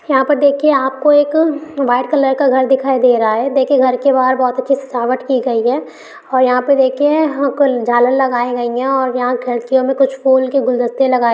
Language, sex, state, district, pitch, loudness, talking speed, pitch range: Hindi, female, Bihar, Bhagalpur, 265 Hz, -14 LUFS, 220 wpm, 250-275 Hz